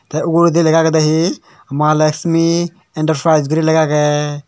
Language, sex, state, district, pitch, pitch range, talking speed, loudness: Chakma, male, Tripura, Dhalai, 160 Hz, 155-165 Hz, 135 wpm, -14 LUFS